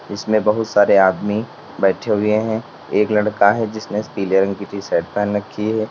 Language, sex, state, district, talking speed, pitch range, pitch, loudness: Hindi, male, Uttar Pradesh, Lalitpur, 195 wpm, 100-110 Hz, 105 Hz, -18 LUFS